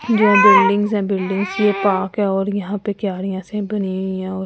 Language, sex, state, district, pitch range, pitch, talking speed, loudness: Hindi, female, Delhi, New Delhi, 190-205 Hz, 200 Hz, 215 wpm, -17 LUFS